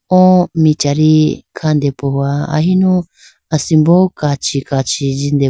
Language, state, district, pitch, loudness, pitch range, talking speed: Idu Mishmi, Arunachal Pradesh, Lower Dibang Valley, 155 Hz, -13 LUFS, 140-170 Hz, 100 wpm